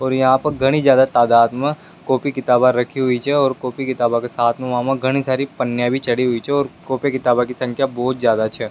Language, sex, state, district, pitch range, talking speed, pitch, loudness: Rajasthani, male, Rajasthan, Nagaur, 120-135 Hz, 225 wpm, 130 Hz, -18 LUFS